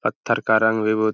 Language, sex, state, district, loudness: Hindi, male, Uttar Pradesh, Hamirpur, -20 LUFS